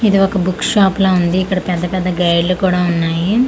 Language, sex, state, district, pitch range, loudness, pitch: Telugu, female, Andhra Pradesh, Manyam, 175-190 Hz, -15 LUFS, 185 Hz